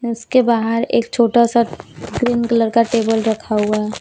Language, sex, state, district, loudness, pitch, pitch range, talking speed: Hindi, female, Jharkhand, Deoghar, -16 LUFS, 230 Hz, 225-235 Hz, 180 wpm